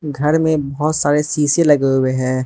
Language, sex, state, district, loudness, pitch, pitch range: Hindi, male, Arunachal Pradesh, Lower Dibang Valley, -16 LUFS, 150 Hz, 135-155 Hz